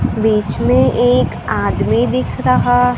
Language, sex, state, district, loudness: Hindi, female, Maharashtra, Gondia, -15 LUFS